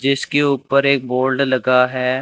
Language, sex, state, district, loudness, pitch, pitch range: Hindi, male, Rajasthan, Bikaner, -16 LUFS, 130 Hz, 130-140 Hz